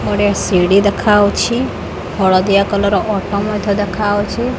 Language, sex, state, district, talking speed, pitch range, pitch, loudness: Odia, female, Odisha, Khordha, 130 wpm, 200-205 Hz, 200 Hz, -14 LUFS